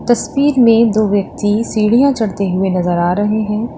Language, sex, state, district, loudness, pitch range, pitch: Hindi, female, Uttar Pradesh, Lalitpur, -14 LUFS, 200-230 Hz, 215 Hz